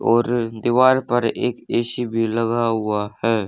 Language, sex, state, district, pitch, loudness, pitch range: Hindi, male, Haryana, Charkhi Dadri, 115 Hz, -20 LUFS, 115-120 Hz